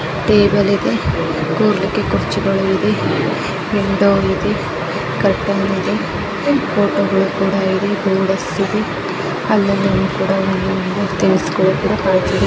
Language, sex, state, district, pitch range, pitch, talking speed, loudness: Kannada, male, Karnataka, Mysore, 190-200 Hz, 195 Hz, 95 wpm, -16 LUFS